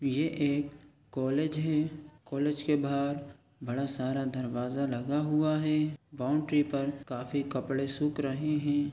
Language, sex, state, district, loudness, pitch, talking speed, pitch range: Hindi, male, Chhattisgarh, Sukma, -31 LUFS, 145 Hz, 135 wpm, 135-150 Hz